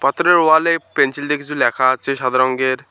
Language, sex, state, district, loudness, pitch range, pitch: Bengali, male, West Bengal, Alipurduar, -16 LUFS, 130-160 Hz, 140 Hz